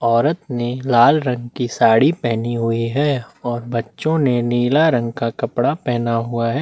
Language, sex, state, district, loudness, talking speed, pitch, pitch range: Hindi, male, Chhattisgarh, Bastar, -18 LUFS, 170 wpm, 120 Hz, 115-140 Hz